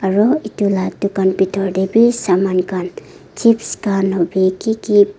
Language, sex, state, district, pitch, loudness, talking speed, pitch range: Nagamese, female, Nagaland, Dimapur, 195 Hz, -16 LUFS, 160 wpm, 190-215 Hz